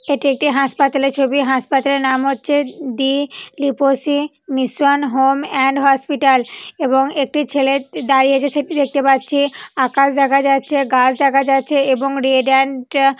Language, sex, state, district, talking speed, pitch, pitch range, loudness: Bengali, female, West Bengal, Purulia, 140 wpm, 275 Hz, 270-285 Hz, -16 LUFS